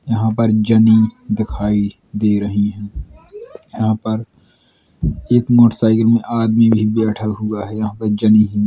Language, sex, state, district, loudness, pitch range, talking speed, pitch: Bundeli, male, Uttar Pradesh, Jalaun, -16 LUFS, 105-115 Hz, 160 wpm, 110 Hz